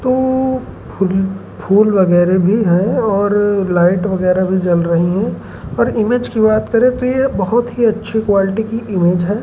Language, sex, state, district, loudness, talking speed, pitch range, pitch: Hindi, male, Madhya Pradesh, Umaria, -14 LUFS, 165 wpm, 185-230 Hz, 205 Hz